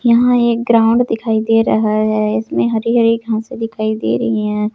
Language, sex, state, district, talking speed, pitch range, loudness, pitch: Hindi, female, Jharkhand, Palamu, 175 wpm, 215-235 Hz, -15 LUFS, 225 Hz